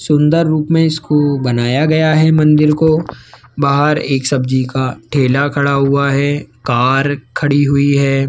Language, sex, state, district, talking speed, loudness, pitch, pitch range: Hindi, male, Rajasthan, Jaipur, 150 wpm, -13 LUFS, 145 Hz, 135-150 Hz